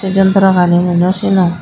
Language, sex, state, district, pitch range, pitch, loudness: Chakma, female, Tripura, Dhalai, 175-195 Hz, 185 Hz, -11 LUFS